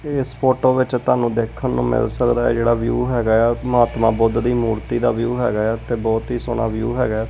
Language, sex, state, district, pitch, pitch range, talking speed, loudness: Punjabi, male, Punjab, Kapurthala, 115 Hz, 115-125 Hz, 215 wpm, -19 LUFS